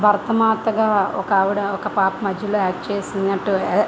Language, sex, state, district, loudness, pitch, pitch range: Telugu, female, Andhra Pradesh, Visakhapatnam, -20 LUFS, 200 Hz, 195-210 Hz